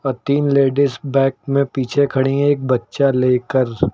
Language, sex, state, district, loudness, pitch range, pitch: Hindi, male, Uttar Pradesh, Lucknow, -17 LUFS, 130-140 Hz, 135 Hz